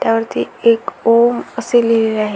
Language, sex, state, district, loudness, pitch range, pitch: Marathi, female, Maharashtra, Aurangabad, -15 LUFS, 225-235 Hz, 230 Hz